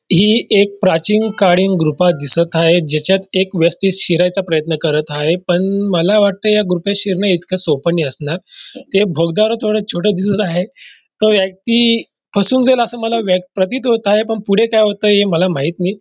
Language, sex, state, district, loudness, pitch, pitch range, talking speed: Marathi, male, Maharashtra, Dhule, -14 LUFS, 195 Hz, 175-210 Hz, 185 wpm